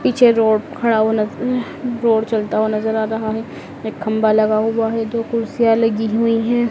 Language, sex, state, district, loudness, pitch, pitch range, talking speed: Hindi, female, Madhya Pradesh, Dhar, -17 LUFS, 225 Hz, 220-230 Hz, 190 wpm